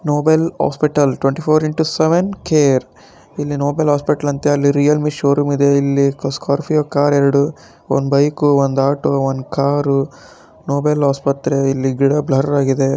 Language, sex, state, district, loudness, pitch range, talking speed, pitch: Kannada, male, Karnataka, Raichur, -16 LUFS, 140-150 Hz, 155 wpm, 140 Hz